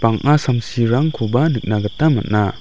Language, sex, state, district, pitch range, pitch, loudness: Garo, male, Meghalaya, West Garo Hills, 110-150 Hz, 120 Hz, -17 LUFS